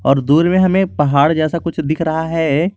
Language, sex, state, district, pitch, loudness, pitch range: Hindi, male, Jharkhand, Garhwa, 160 Hz, -15 LUFS, 150-170 Hz